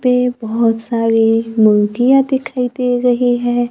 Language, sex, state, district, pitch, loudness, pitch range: Hindi, female, Maharashtra, Gondia, 240 Hz, -14 LUFS, 225-250 Hz